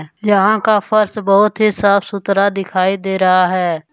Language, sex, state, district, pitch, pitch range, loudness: Hindi, male, Jharkhand, Deoghar, 200 Hz, 185-210 Hz, -14 LUFS